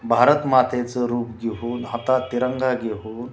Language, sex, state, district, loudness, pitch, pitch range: Marathi, male, Maharashtra, Washim, -22 LUFS, 120 Hz, 115-130 Hz